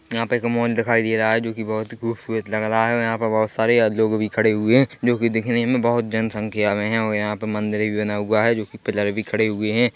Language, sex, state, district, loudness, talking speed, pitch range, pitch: Hindi, male, Chhattisgarh, Bilaspur, -21 LUFS, 295 wpm, 110-115 Hz, 110 Hz